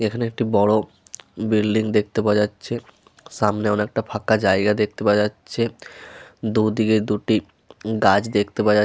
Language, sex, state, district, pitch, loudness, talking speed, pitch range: Bengali, male, Jharkhand, Sahebganj, 110 Hz, -21 LUFS, 140 wpm, 105-110 Hz